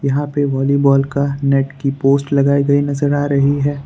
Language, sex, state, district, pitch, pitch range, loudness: Hindi, male, Gujarat, Valsad, 140 Hz, 140-145 Hz, -15 LUFS